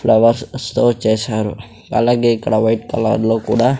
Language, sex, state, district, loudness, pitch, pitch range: Telugu, female, Andhra Pradesh, Sri Satya Sai, -16 LUFS, 110 Hz, 110-115 Hz